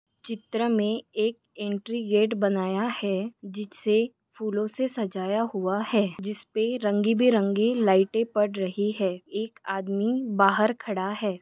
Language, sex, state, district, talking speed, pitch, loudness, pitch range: Hindi, female, Maharashtra, Solapur, 125 wpm, 210 Hz, -26 LUFS, 200-225 Hz